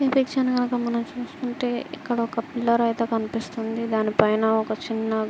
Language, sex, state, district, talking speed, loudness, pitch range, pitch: Telugu, female, Andhra Pradesh, Srikakulam, 160 wpm, -24 LUFS, 225-245 Hz, 235 Hz